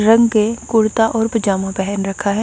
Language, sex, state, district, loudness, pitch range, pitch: Hindi, female, Punjab, Kapurthala, -16 LUFS, 200-225 Hz, 215 Hz